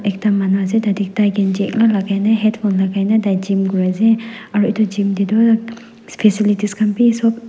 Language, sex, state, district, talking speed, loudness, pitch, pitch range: Nagamese, female, Nagaland, Dimapur, 185 wpm, -16 LUFS, 210 Hz, 200-220 Hz